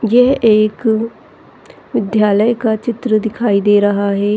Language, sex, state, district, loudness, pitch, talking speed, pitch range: Hindi, female, Chhattisgarh, Rajnandgaon, -14 LUFS, 220 Hz, 125 wpm, 205-230 Hz